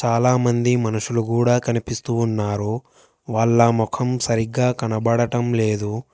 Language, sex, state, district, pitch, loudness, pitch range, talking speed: Telugu, male, Telangana, Hyderabad, 115 Hz, -20 LUFS, 110-120 Hz, 100 wpm